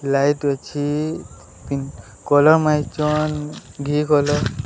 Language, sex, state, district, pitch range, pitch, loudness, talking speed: Odia, male, Odisha, Sambalpur, 140-150 Hz, 145 Hz, -19 LUFS, 105 wpm